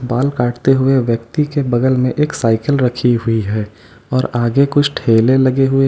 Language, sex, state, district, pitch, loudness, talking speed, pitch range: Hindi, male, Uttar Pradesh, Lalitpur, 125 Hz, -15 LUFS, 195 wpm, 115-135 Hz